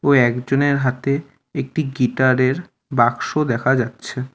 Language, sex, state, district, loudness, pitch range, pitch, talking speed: Bengali, male, West Bengal, Alipurduar, -19 LUFS, 125-140 Hz, 130 Hz, 125 wpm